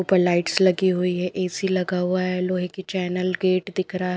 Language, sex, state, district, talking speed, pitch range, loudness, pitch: Hindi, female, Punjab, Pathankot, 230 wpm, 180-185 Hz, -23 LUFS, 185 Hz